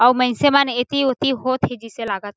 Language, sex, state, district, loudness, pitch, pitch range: Chhattisgarhi, female, Chhattisgarh, Jashpur, -19 LUFS, 250 Hz, 235-275 Hz